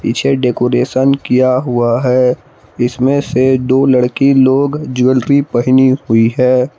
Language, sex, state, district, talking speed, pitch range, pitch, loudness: Hindi, male, Jharkhand, Palamu, 125 wpm, 125-135 Hz, 130 Hz, -12 LUFS